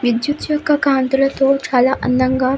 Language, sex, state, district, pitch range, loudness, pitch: Telugu, female, Andhra Pradesh, Visakhapatnam, 255-275 Hz, -16 LUFS, 270 Hz